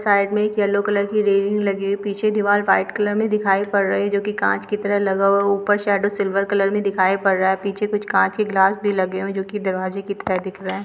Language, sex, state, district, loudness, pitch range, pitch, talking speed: Hindi, female, Bihar, Lakhisarai, -20 LUFS, 195-205 Hz, 200 Hz, 285 wpm